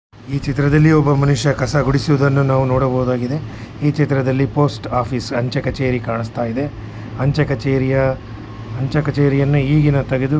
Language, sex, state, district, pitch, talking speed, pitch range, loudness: Kannada, male, Karnataka, Shimoga, 135 Hz, 120 wpm, 125-140 Hz, -17 LUFS